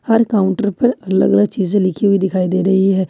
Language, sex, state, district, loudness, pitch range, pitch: Hindi, female, Jharkhand, Ranchi, -15 LUFS, 190-210 Hz, 195 Hz